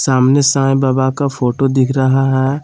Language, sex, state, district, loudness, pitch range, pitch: Hindi, male, Jharkhand, Palamu, -14 LUFS, 130-135 Hz, 135 Hz